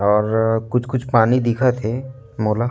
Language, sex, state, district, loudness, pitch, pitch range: Chhattisgarhi, male, Chhattisgarh, Rajnandgaon, -19 LUFS, 115 Hz, 110-125 Hz